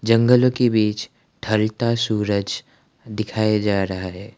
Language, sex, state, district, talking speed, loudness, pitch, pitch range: Hindi, male, Assam, Kamrup Metropolitan, 125 wpm, -20 LUFS, 110 Hz, 105-115 Hz